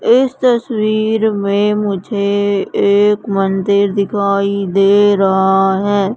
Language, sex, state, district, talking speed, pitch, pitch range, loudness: Hindi, female, Madhya Pradesh, Katni, 95 wpm, 200 Hz, 195-210 Hz, -14 LUFS